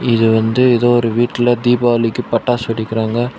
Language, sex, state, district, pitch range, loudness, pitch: Tamil, male, Tamil Nadu, Kanyakumari, 115-120 Hz, -15 LUFS, 120 Hz